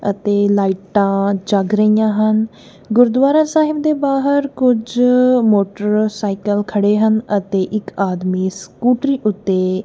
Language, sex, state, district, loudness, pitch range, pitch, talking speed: Punjabi, female, Punjab, Kapurthala, -16 LUFS, 200-245 Hz, 210 Hz, 110 wpm